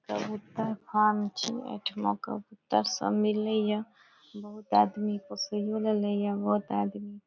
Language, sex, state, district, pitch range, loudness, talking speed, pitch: Maithili, female, Bihar, Saharsa, 200-215 Hz, -30 LUFS, 140 wpm, 210 Hz